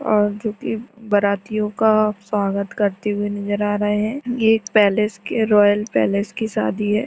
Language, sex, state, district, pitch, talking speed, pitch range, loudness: Hindi, female, Uttar Pradesh, Jalaun, 210 Hz, 195 wpm, 205-220 Hz, -19 LUFS